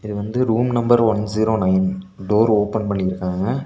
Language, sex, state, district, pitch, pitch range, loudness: Tamil, male, Tamil Nadu, Nilgiris, 105 Hz, 95-115 Hz, -19 LUFS